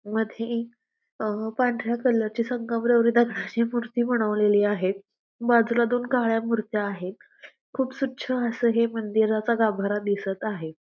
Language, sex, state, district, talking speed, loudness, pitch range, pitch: Marathi, female, Maharashtra, Pune, 135 wpm, -25 LUFS, 210-240 Hz, 230 Hz